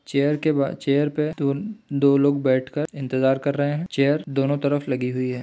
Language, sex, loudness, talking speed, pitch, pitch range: Chhattisgarhi, male, -22 LUFS, 210 wpm, 140 Hz, 135-150 Hz